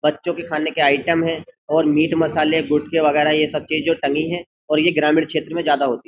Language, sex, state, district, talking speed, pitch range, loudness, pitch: Hindi, male, Uttar Pradesh, Jyotiba Phule Nagar, 245 wpm, 150-165 Hz, -19 LUFS, 155 Hz